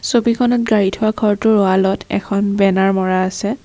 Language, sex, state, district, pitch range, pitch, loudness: Assamese, female, Assam, Kamrup Metropolitan, 195-220 Hz, 200 Hz, -16 LUFS